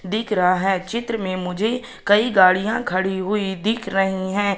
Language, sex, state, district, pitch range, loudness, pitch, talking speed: Hindi, female, Madhya Pradesh, Katni, 185-220 Hz, -20 LUFS, 195 Hz, 170 wpm